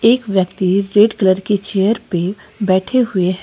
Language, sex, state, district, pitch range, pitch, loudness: Hindi, female, Uttar Pradesh, Lucknow, 185-210 Hz, 200 Hz, -16 LUFS